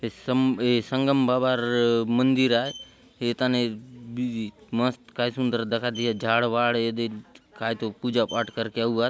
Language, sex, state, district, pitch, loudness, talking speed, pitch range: Halbi, male, Chhattisgarh, Bastar, 120 Hz, -25 LUFS, 160 wpm, 115-125 Hz